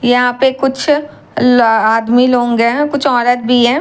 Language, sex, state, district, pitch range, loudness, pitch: Hindi, female, Bihar, Katihar, 240-270 Hz, -12 LUFS, 245 Hz